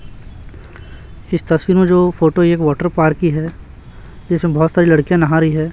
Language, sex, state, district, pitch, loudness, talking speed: Hindi, male, Chhattisgarh, Raipur, 160 Hz, -14 LUFS, 180 wpm